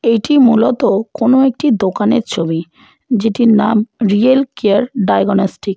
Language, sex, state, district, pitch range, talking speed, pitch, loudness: Bengali, female, West Bengal, Jalpaiguri, 205-250 Hz, 125 wpm, 225 Hz, -13 LUFS